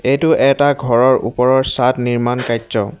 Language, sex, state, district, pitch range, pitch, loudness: Assamese, male, Assam, Hailakandi, 120-135 Hz, 125 Hz, -14 LUFS